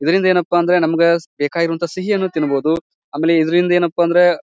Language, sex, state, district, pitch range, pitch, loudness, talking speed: Kannada, male, Karnataka, Bijapur, 165-175 Hz, 170 Hz, -16 LUFS, 150 wpm